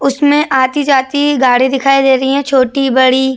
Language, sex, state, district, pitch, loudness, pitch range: Hindi, female, Uttar Pradesh, Jyotiba Phule Nagar, 270 Hz, -11 LUFS, 260-280 Hz